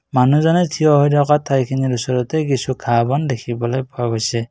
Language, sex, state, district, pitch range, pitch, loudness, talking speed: Assamese, male, Assam, Kamrup Metropolitan, 120-145 Hz, 130 Hz, -17 LUFS, 160 wpm